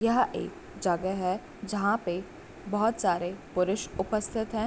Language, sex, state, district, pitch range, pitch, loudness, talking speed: Hindi, female, Bihar, Bhagalpur, 185-215 Hz, 200 Hz, -30 LUFS, 140 wpm